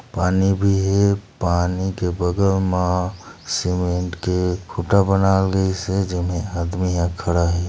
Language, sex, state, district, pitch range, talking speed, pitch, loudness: Chhattisgarhi, male, Chhattisgarh, Sarguja, 90-95 Hz, 140 wpm, 90 Hz, -20 LUFS